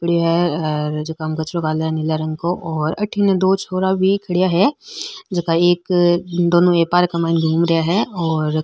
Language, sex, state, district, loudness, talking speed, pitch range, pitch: Marwari, female, Rajasthan, Nagaur, -18 LUFS, 195 wpm, 160-185 Hz, 170 Hz